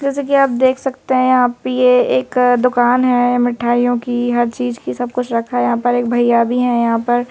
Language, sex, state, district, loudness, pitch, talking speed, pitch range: Hindi, female, Madhya Pradesh, Bhopal, -15 LUFS, 245 Hz, 240 wpm, 240-250 Hz